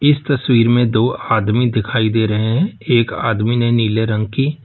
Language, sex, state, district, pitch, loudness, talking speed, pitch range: Hindi, male, Uttar Pradesh, Lalitpur, 115 Hz, -16 LUFS, 195 wpm, 110-125 Hz